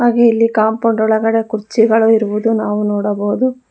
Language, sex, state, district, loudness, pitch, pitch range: Kannada, female, Karnataka, Bangalore, -14 LUFS, 225 Hz, 215-230 Hz